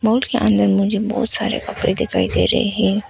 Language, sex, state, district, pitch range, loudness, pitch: Hindi, female, Arunachal Pradesh, Papum Pare, 200-235 Hz, -18 LUFS, 220 Hz